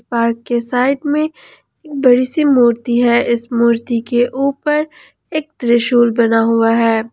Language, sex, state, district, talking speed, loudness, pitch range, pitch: Hindi, female, Jharkhand, Ranchi, 135 wpm, -15 LUFS, 235-280 Hz, 240 Hz